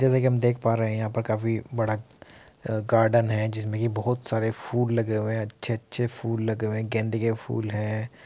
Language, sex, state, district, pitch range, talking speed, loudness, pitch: Hindi, male, Uttar Pradesh, Muzaffarnagar, 110-115 Hz, 225 wpm, -26 LUFS, 115 Hz